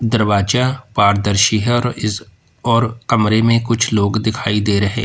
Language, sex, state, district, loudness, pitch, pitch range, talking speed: Hindi, male, Uttar Pradesh, Lalitpur, -16 LUFS, 110 Hz, 105-115 Hz, 155 wpm